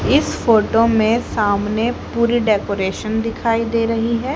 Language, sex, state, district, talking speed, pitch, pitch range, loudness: Hindi, female, Haryana, Jhajjar, 135 wpm, 225 Hz, 215-235 Hz, -17 LUFS